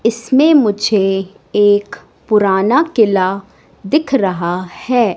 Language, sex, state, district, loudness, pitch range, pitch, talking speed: Hindi, female, Madhya Pradesh, Katni, -14 LUFS, 195-240 Hz, 210 Hz, 95 wpm